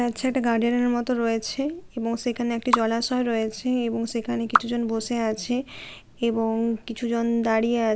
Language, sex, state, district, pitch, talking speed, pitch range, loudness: Bengali, female, West Bengal, Kolkata, 235 Hz, 160 wpm, 230-245 Hz, -25 LUFS